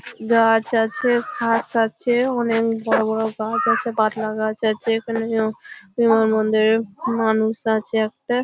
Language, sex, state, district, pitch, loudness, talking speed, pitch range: Bengali, female, West Bengal, Malda, 225 Hz, -20 LUFS, 130 wpm, 220-235 Hz